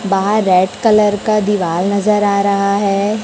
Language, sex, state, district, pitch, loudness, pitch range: Hindi, female, Chhattisgarh, Raipur, 200 Hz, -14 LUFS, 195-210 Hz